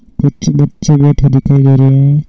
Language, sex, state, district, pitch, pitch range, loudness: Hindi, male, Rajasthan, Bikaner, 145 Hz, 135-150 Hz, -10 LUFS